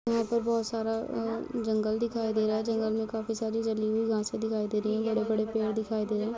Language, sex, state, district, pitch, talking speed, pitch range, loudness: Hindi, female, Uttar Pradesh, Jalaun, 220 Hz, 235 wpm, 215-225 Hz, -30 LUFS